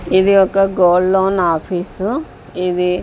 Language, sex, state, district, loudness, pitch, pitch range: Telugu, female, Andhra Pradesh, Sri Satya Sai, -15 LUFS, 190 Hz, 180-195 Hz